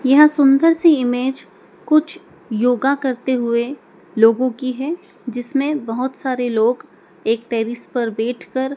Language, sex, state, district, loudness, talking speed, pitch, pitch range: Hindi, male, Madhya Pradesh, Dhar, -18 LUFS, 130 wpm, 255 Hz, 235-275 Hz